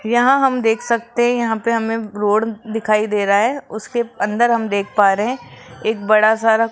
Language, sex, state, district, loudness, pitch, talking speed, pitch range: Hindi, female, Rajasthan, Jaipur, -17 LUFS, 225 Hz, 215 wpm, 215-235 Hz